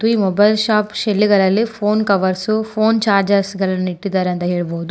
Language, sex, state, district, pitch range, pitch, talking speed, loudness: Kannada, female, Karnataka, Koppal, 190-215 Hz, 200 Hz, 145 wpm, -16 LUFS